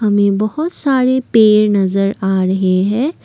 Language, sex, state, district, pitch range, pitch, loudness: Hindi, female, Assam, Kamrup Metropolitan, 195-255 Hz, 210 Hz, -14 LUFS